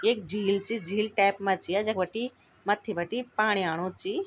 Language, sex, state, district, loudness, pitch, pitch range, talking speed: Garhwali, female, Uttarakhand, Tehri Garhwal, -28 LUFS, 205 Hz, 195-230 Hz, 210 wpm